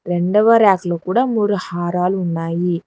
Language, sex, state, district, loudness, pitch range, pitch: Telugu, female, Telangana, Hyderabad, -17 LUFS, 175-205 Hz, 180 Hz